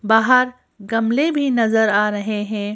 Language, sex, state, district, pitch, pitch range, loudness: Hindi, female, Madhya Pradesh, Bhopal, 225 Hz, 210-250 Hz, -18 LUFS